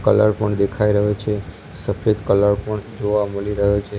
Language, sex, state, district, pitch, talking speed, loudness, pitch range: Gujarati, male, Gujarat, Gandhinagar, 105 Hz, 180 wpm, -20 LUFS, 100-105 Hz